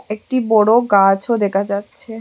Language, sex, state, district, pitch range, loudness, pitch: Bengali, female, Assam, Hailakandi, 200-230 Hz, -15 LUFS, 215 Hz